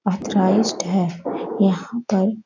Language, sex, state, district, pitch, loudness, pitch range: Hindi, female, West Bengal, North 24 Parganas, 195 Hz, -20 LUFS, 190-215 Hz